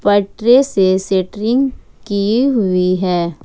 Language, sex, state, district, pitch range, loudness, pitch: Hindi, female, Jharkhand, Ranchi, 185-235 Hz, -15 LUFS, 205 Hz